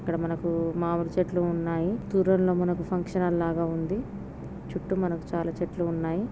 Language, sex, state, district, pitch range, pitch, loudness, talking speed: Telugu, female, Andhra Pradesh, Srikakulam, 165-180 Hz, 170 Hz, -28 LUFS, 150 wpm